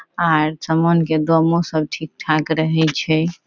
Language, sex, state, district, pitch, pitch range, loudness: Maithili, female, Bihar, Saharsa, 160 Hz, 155-165 Hz, -18 LUFS